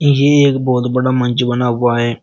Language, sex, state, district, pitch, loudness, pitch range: Hindi, male, Uttar Pradesh, Shamli, 125 Hz, -14 LUFS, 120-135 Hz